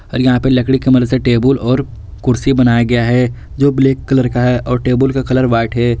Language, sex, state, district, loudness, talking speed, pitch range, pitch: Hindi, male, Jharkhand, Garhwa, -13 LUFS, 240 wpm, 120-130 Hz, 125 Hz